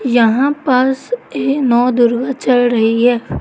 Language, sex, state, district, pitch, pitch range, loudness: Hindi, female, Madhya Pradesh, Katni, 245 Hz, 240-265 Hz, -14 LUFS